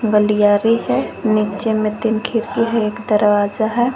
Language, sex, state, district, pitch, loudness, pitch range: Hindi, female, Jharkhand, Garhwa, 215 Hz, -17 LUFS, 210-230 Hz